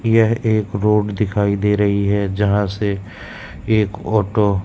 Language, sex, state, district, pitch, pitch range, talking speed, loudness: Hindi, male, Madhya Pradesh, Katni, 105 Hz, 100-105 Hz, 155 wpm, -18 LUFS